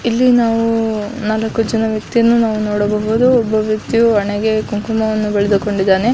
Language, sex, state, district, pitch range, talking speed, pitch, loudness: Kannada, female, Karnataka, Dakshina Kannada, 210-230 Hz, 115 wpm, 220 Hz, -15 LUFS